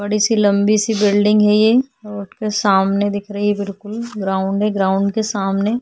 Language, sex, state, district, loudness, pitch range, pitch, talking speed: Hindi, female, Chhattisgarh, Korba, -17 LUFS, 200-215 Hz, 205 Hz, 165 wpm